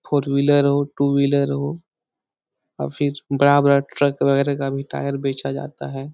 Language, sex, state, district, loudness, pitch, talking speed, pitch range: Hindi, male, Bihar, Lakhisarai, -20 LUFS, 140 Hz, 165 wpm, 140-145 Hz